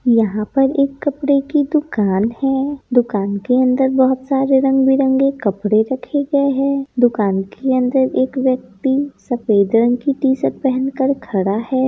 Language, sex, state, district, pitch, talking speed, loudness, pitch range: Hindi, female, Bihar, East Champaran, 265 Hz, 145 wpm, -17 LUFS, 235-275 Hz